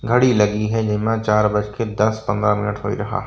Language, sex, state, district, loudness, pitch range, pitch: Hindi, male, Uttar Pradesh, Varanasi, -19 LUFS, 105-110 Hz, 105 Hz